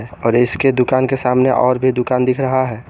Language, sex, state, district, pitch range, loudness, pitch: Hindi, male, Jharkhand, Garhwa, 125-130 Hz, -15 LUFS, 125 Hz